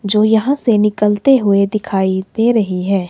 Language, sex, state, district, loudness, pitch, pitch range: Hindi, male, Himachal Pradesh, Shimla, -14 LUFS, 210 Hz, 200-225 Hz